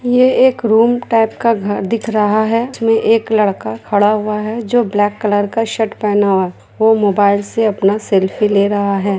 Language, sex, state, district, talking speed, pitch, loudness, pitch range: Hindi, female, Bihar, Kishanganj, 200 wpm, 215 Hz, -14 LUFS, 205-225 Hz